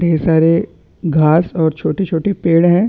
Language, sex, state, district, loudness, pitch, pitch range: Hindi, male, Chhattisgarh, Bastar, -15 LUFS, 165 Hz, 160-180 Hz